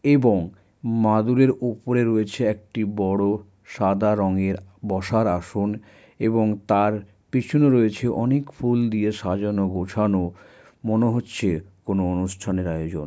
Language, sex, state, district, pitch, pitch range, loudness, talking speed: Bengali, male, West Bengal, Malda, 105 Hz, 95-115 Hz, -23 LUFS, 110 wpm